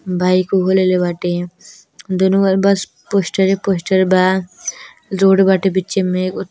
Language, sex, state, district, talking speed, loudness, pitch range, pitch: Bhojpuri, male, Uttar Pradesh, Deoria, 130 wpm, -15 LUFS, 185-195 Hz, 190 Hz